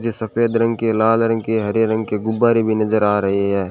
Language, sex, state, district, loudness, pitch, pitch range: Hindi, male, Rajasthan, Bikaner, -18 LUFS, 110 Hz, 105-115 Hz